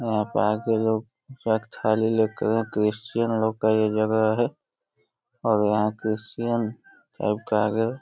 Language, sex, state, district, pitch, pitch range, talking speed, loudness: Hindi, male, Uttar Pradesh, Deoria, 110 Hz, 110-115 Hz, 135 wpm, -24 LUFS